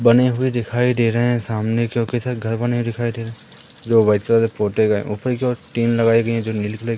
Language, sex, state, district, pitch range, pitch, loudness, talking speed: Hindi, male, Madhya Pradesh, Umaria, 110-120 Hz, 115 Hz, -19 LUFS, 300 wpm